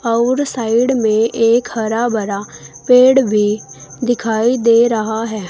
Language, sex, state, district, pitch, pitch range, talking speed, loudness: Hindi, female, Uttar Pradesh, Saharanpur, 230 Hz, 220-240 Hz, 130 wpm, -15 LUFS